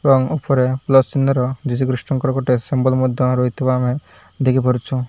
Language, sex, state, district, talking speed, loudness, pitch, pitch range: Odia, male, Odisha, Malkangiri, 140 wpm, -18 LUFS, 130 Hz, 125-135 Hz